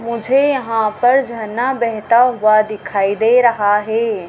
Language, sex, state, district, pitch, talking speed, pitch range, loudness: Hindi, female, Madhya Pradesh, Dhar, 230 Hz, 140 wpm, 215-245 Hz, -15 LUFS